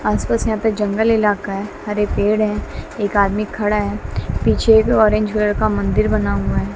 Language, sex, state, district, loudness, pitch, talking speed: Hindi, female, Bihar, West Champaran, -17 LUFS, 210 Hz, 205 wpm